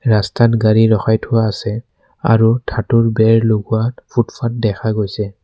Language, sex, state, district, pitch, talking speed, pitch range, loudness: Assamese, male, Assam, Kamrup Metropolitan, 110 Hz, 130 wpm, 110-115 Hz, -15 LUFS